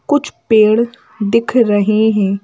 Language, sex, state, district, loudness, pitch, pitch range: Hindi, female, Madhya Pradesh, Bhopal, -14 LUFS, 220 Hz, 205-235 Hz